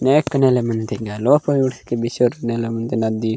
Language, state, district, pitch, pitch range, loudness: Gondi, Chhattisgarh, Sukma, 120 Hz, 110-130 Hz, -19 LUFS